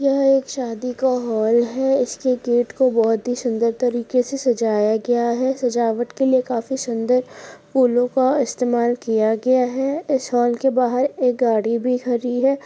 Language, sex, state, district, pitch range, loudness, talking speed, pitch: Hindi, female, Rajasthan, Churu, 235-260 Hz, -19 LUFS, 175 wpm, 250 Hz